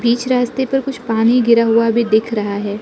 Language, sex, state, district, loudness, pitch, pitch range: Hindi, female, Arunachal Pradesh, Lower Dibang Valley, -15 LUFS, 230 Hz, 220-245 Hz